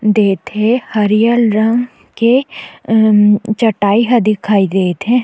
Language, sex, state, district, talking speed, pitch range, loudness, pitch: Chhattisgarhi, female, Chhattisgarh, Jashpur, 135 wpm, 210-235 Hz, -13 LUFS, 215 Hz